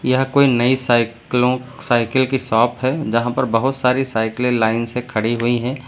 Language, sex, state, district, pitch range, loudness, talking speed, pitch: Hindi, male, Uttar Pradesh, Lucknow, 115-130 Hz, -18 LUFS, 185 wpm, 125 Hz